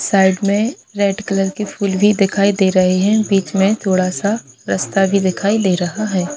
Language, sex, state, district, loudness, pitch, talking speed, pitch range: Hindi, female, Chhattisgarh, Bilaspur, -16 LUFS, 195 Hz, 195 wpm, 185-205 Hz